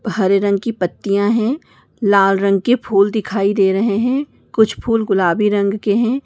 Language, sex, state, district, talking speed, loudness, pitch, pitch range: Hindi, female, Bihar, Gopalganj, 180 wpm, -16 LUFS, 205 Hz, 195-225 Hz